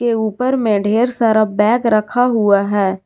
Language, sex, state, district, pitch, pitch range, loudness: Hindi, female, Jharkhand, Garhwa, 220 Hz, 205-240 Hz, -15 LUFS